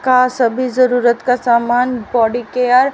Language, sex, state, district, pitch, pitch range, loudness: Hindi, female, Haryana, Rohtak, 250 Hz, 240-255 Hz, -14 LUFS